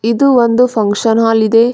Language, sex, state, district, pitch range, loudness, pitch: Kannada, female, Karnataka, Bidar, 225-245 Hz, -11 LUFS, 230 Hz